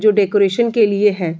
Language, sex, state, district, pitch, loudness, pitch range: Hindi, female, Bihar, Bhagalpur, 205 Hz, -15 LUFS, 195-215 Hz